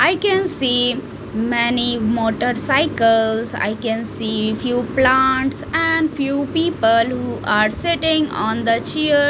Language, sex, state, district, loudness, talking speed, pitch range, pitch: English, female, Punjab, Fazilka, -18 LUFS, 135 wpm, 225-310 Hz, 245 Hz